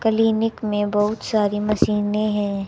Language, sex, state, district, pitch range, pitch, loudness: Hindi, female, Haryana, Jhajjar, 205-220 Hz, 210 Hz, -21 LUFS